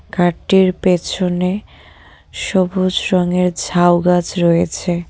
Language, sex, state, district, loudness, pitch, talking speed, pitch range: Bengali, female, West Bengal, Cooch Behar, -16 LUFS, 180 Hz, 95 wpm, 175-185 Hz